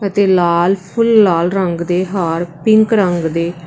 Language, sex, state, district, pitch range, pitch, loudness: Punjabi, female, Karnataka, Bangalore, 170-200 Hz, 180 Hz, -14 LUFS